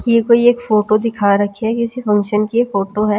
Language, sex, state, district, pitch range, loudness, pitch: Hindi, female, Chhattisgarh, Raipur, 210-235 Hz, -15 LUFS, 215 Hz